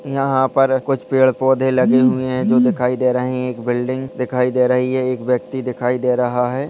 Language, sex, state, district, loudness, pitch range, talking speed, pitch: Hindi, male, Bihar, Purnia, -17 LUFS, 125-130 Hz, 215 wpm, 130 Hz